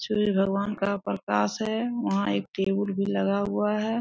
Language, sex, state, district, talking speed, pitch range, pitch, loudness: Hindi, female, Jharkhand, Sahebganj, 180 wpm, 195-210 Hz, 200 Hz, -27 LUFS